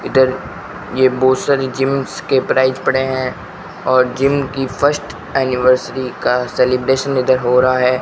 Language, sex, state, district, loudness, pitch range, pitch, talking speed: Hindi, male, Rajasthan, Bikaner, -16 LUFS, 125-135 Hz, 130 Hz, 150 wpm